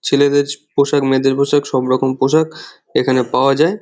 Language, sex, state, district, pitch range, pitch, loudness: Bengali, male, West Bengal, Jhargram, 135-145 Hz, 140 Hz, -15 LUFS